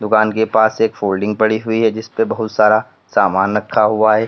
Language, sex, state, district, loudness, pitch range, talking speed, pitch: Hindi, male, Uttar Pradesh, Lalitpur, -15 LUFS, 105-110 Hz, 210 wpm, 110 Hz